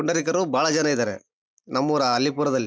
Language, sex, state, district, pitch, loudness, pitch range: Kannada, male, Karnataka, Bellary, 150 Hz, -22 LUFS, 135-160 Hz